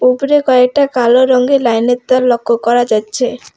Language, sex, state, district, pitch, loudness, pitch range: Bengali, female, West Bengal, Alipurduar, 250 Hz, -12 LUFS, 235-255 Hz